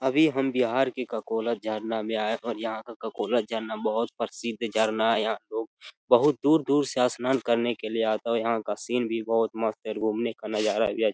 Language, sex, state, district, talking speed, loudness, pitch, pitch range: Hindi, male, Bihar, Jamui, 220 wpm, -27 LUFS, 115 Hz, 110-125 Hz